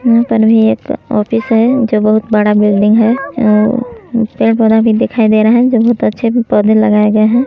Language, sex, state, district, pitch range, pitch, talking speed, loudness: Hindi, male, Chhattisgarh, Balrampur, 215-235 Hz, 225 Hz, 200 wpm, -11 LUFS